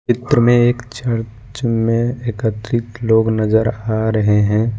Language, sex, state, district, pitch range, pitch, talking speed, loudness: Hindi, male, Jharkhand, Ranchi, 110-120 Hz, 115 Hz, 140 wpm, -17 LUFS